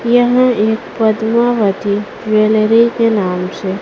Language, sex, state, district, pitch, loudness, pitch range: Hindi, female, Chhattisgarh, Raipur, 220 Hz, -13 LUFS, 205-235 Hz